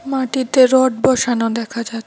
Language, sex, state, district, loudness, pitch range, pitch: Bengali, female, West Bengal, Cooch Behar, -16 LUFS, 230-260 Hz, 250 Hz